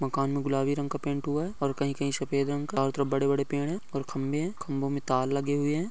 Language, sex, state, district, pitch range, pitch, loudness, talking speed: Hindi, male, Bihar, Muzaffarpur, 140-145 Hz, 140 Hz, -29 LUFS, 295 wpm